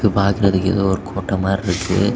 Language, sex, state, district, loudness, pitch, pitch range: Tamil, male, Tamil Nadu, Kanyakumari, -18 LUFS, 95 Hz, 95-100 Hz